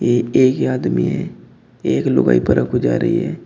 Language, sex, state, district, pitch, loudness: Hindi, male, Uttar Pradesh, Shamli, 115 Hz, -17 LUFS